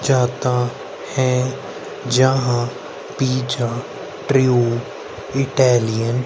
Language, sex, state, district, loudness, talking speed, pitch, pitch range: Hindi, male, Haryana, Rohtak, -19 LUFS, 65 wpm, 125 Hz, 120-130 Hz